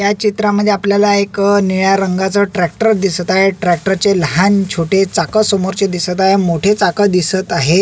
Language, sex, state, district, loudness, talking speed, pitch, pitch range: Marathi, male, Maharashtra, Solapur, -13 LUFS, 155 wpm, 195 Hz, 185-200 Hz